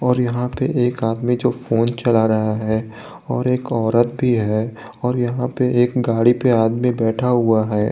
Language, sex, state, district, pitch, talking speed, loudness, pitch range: Hindi, male, Jharkhand, Garhwa, 120 Hz, 190 wpm, -18 LUFS, 115-125 Hz